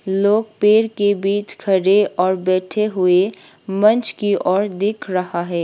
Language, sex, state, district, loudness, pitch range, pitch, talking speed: Hindi, female, Sikkim, Gangtok, -17 LUFS, 185-210 Hz, 200 Hz, 150 wpm